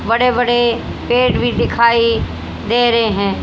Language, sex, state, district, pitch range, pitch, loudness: Hindi, female, Haryana, Jhajjar, 230-240 Hz, 235 Hz, -15 LUFS